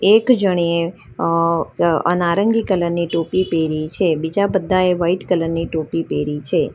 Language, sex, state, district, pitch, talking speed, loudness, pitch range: Gujarati, female, Gujarat, Valsad, 170 Hz, 160 wpm, -18 LUFS, 165-185 Hz